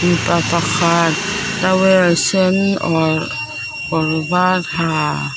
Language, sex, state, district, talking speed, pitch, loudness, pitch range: Mizo, female, Mizoram, Aizawl, 90 wpm, 170 Hz, -16 LUFS, 160-185 Hz